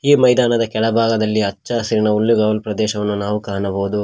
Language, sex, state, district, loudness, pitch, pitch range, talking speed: Kannada, male, Karnataka, Koppal, -17 LUFS, 110 Hz, 105-115 Hz, 165 wpm